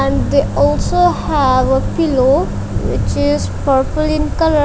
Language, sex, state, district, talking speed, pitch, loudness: English, female, Punjab, Kapurthala, 140 wpm, 255 Hz, -15 LUFS